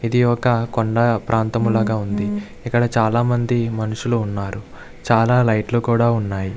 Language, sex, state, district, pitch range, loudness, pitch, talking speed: Telugu, male, Andhra Pradesh, Visakhapatnam, 110-120 Hz, -19 LUFS, 115 Hz, 145 wpm